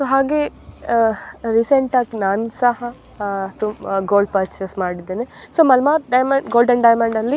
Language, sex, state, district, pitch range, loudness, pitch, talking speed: Kannada, female, Karnataka, Dakshina Kannada, 200-260 Hz, -18 LUFS, 230 Hz, 145 wpm